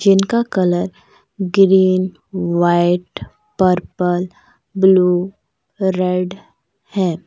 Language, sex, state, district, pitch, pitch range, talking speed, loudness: Hindi, female, Jharkhand, Deoghar, 185 Hz, 180-195 Hz, 65 wpm, -16 LUFS